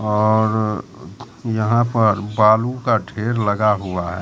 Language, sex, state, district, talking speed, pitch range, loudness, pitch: Hindi, male, Bihar, Katihar, 130 wpm, 105-115 Hz, -18 LUFS, 110 Hz